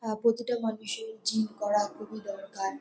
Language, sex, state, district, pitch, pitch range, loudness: Bengali, female, West Bengal, North 24 Parganas, 220 Hz, 205-225 Hz, -31 LUFS